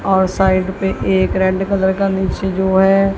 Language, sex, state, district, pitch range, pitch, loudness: Hindi, female, Punjab, Kapurthala, 190-195 Hz, 190 Hz, -16 LUFS